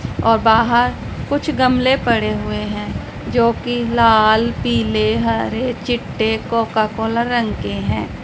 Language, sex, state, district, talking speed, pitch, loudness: Hindi, female, Punjab, Pathankot, 130 wpm, 220 Hz, -17 LUFS